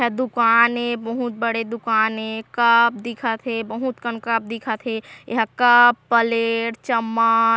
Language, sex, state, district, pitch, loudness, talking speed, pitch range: Chhattisgarhi, female, Chhattisgarh, Korba, 230 Hz, -20 LUFS, 150 wpm, 225-235 Hz